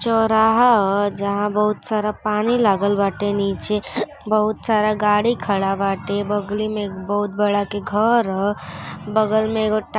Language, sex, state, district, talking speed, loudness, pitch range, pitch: Bhojpuri, female, Uttar Pradesh, Gorakhpur, 155 wpm, -19 LUFS, 205-215 Hz, 210 Hz